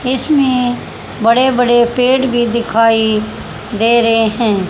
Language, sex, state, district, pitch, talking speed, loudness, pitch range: Hindi, female, Haryana, Jhajjar, 235 Hz, 115 wpm, -12 LUFS, 225-250 Hz